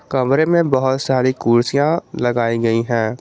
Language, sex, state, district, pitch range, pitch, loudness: Hindi, male, Jharkhand, Garhwa, 120-140 Hz, 130 Hz, -17 LUFS